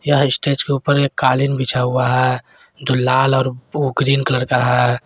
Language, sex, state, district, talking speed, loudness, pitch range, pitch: Hindi, male, Jharkhand, Garhwa, 190 wpm, -17 LUFS, 125-140 Hz, 130 Hz